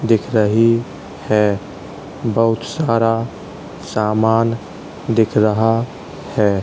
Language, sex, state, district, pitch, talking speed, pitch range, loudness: Hindi, male, Uttar Pradesh, Jalaun, 115 Hz, 80 wpm, 105-115 Hz, -17 LUFS